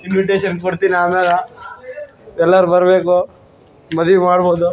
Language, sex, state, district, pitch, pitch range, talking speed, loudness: Kannada, male, Karnataka, Raichur, 180 Hz, 175-190 Hz, 90 wpm, -14 LUFS